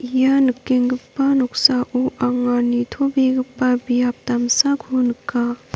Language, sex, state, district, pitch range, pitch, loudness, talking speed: Garo, female, Meghalaya, North Garo Hills, 245-260 Hz, 250 Hz, -18 LUFS, 85 wpm